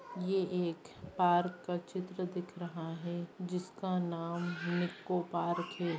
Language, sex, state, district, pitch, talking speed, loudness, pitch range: Hindi, female, Jharkhand, Jamtara, 175 Hz, 130 wpm, -36 LUFS, 175-180 Hz